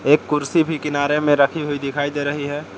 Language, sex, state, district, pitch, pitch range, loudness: Hindi, male, Jharkhand, Palamu, 145 Hz, 145-150 Hz, -19 LUFS